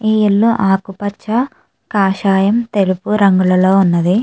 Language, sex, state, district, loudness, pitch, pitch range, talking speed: Telugu, female, Andhra Pradesh, Chittoor, -14 LUFS, 200 Hz, 190-215 Hz, 115 wpm